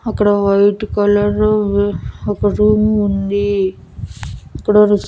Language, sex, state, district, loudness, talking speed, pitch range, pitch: Telugu, female, Andhra Pradesh, Annamaya, -15 LUFS, 95 wpm, 200-210 Hz, 205 Hz